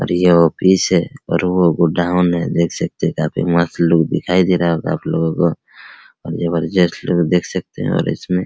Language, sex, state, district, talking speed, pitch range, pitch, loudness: Hindi, male, Bihar, Araria, 220 wpm, 85-90 Hz, 85 Hz, -16 LUFS